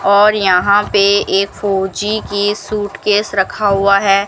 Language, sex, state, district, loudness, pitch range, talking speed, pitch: Hindi, female, Rajasthan, Bikaner, -14 LUFS, 195-205 Hz, 140 wpm, 200 Hz